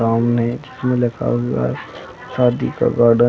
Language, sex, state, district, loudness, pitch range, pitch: Hindi, male, Chhattisgarh, Bilaspur, -18 LUFS, 115-120 Hz, 120 Hz